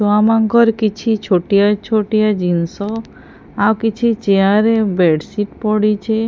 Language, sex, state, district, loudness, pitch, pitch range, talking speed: Odia, female, Odisha, Sambalpur, -15 LUFS, 210 Hz, 200-220 Hz, 105 wpm